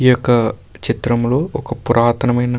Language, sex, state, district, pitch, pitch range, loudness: Telugu, male, Karnataka, Bellary, 120 Hz, 115-125 Hz, -16 LUFS